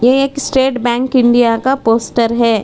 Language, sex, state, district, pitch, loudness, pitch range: Hindi, female, Karnataka, Bangalore, 245 Hz, -13 LUFS, 230-265 Hz